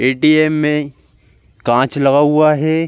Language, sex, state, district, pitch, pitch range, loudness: Hindi, male, Chhattisgarh, Korba, 150 Hz, 135-155 Hz, -14 LUFS